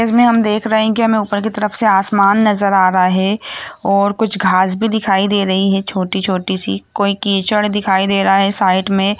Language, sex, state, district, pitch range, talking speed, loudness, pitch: Hindi, female, Bihar, Samastipur, 195-215 Hz, 220 wpm, -14 LUFS, 200 Hz